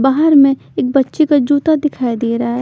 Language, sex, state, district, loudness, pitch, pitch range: Hindi, female, Chandigarh, Chandigarh, -13 LUFS, 275 Hz, 250-295 Hz